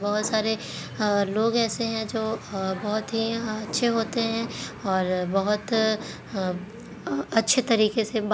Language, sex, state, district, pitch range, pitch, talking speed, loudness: Hindi, female, Bihar, Jahanabad, 205-225 Hz, 220 Hz, 150 wpm, -25 LUFS